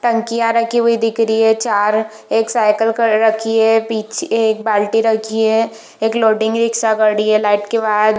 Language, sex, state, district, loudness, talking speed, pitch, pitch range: Hindi, female, Jharkhand, Jamtara, -15 LUFS, 185 wpm, 220 Hz, 215-225 Hz